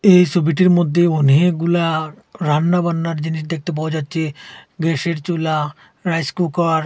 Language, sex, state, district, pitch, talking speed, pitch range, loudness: Bengali, male, Assam, Hailakandi, 165 Hz, 120 wpm, 155-175 Hz, -18 LUFS